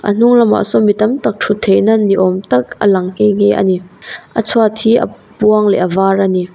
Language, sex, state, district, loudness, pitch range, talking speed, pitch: Mizo, female, Mizoram, Aizawl, -12 LUFS, 190-215 Hz, 255 wpm, 205 Hz